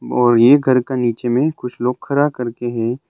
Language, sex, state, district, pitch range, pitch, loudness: Hindi, male, Arunachal Pradesh, Longding, 120-135 Hz, 125 Hz, -16 LUFS